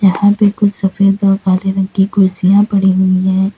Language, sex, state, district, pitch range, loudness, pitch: Hindi, female, Uttar Pradesh, Lalitpur, 190-200 Hz, -12 LUFS, 195 Hz